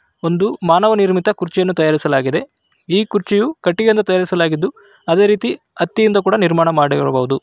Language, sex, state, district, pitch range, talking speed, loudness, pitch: Kannada, male, Karnataka, Raichur, 165-205 Hz, 130 wpm, -15 LUFS, 185 Hz